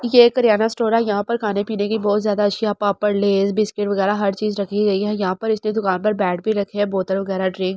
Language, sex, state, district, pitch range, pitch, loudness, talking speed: Hindi, female, Delhi, New Delhi, 200-215 Hz, 205 Hz, -19 LUFS, 270 wpm